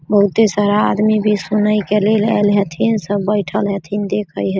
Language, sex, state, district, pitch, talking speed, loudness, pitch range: Maithili, female, Bihar, Samastipur, 210 Hz, 180 wpm, -16 LUFS, 205-210 Hz